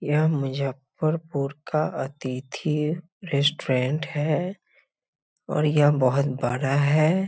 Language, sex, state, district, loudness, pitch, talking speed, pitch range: Hindi, male, Bihar, Muzaffarpur, -25 LUFS, 150 Hz, 90 wpm, 135-155 Hz